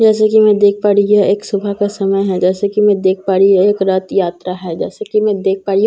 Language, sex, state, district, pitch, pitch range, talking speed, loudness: Hindi, female, Bihar, Katihar, 200 Hz, 190-205 Hz, 325 wpm, -13 LUFS